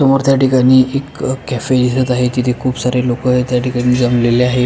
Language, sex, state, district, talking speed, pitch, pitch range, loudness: Marathi, male, Maharashtra, Pune, 180 wpm, 125 Hz, 125-130 Hz, -14 LUFS